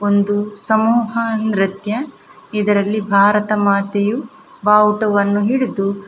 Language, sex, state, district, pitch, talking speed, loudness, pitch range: Kannada, female, Karnataka, Dakshina Kannada, 210 Hz, 70 wpm, -16 LUFS, 200-220 Hz